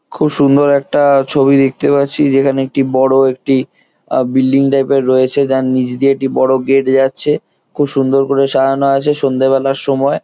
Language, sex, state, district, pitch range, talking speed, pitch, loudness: Bengali, male, West Bengal, Jhargram, 135-140 Hz, 170 wpm, 135 Hz, -12 LUFS